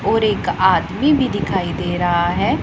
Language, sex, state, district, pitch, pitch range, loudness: Hindi, female, Punjab, Pathankot, 190 Hz, 175-220 Hz, -17 LUFS